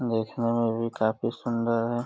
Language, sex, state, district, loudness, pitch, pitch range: Hindi, male, Uttar Pradesh, Deoria, -27 LUFS, 115 Hz, 115-120 Hz